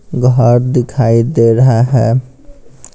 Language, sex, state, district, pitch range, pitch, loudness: Hindi, male, Bihar, Patna, 115-130 Hz, 125 Hz, -11 LUFS